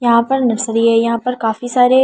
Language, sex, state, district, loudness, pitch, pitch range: Hindi, female, Delhi, New Delhi, -15 LUFS, 235 Hz, 230-250 Hz